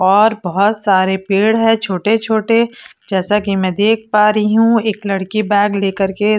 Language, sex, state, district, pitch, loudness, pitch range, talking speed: Hindi, female, Odisha, Sambalpur, 210 Hz, -14 LUFS, 195-220 Hz, 180 wpm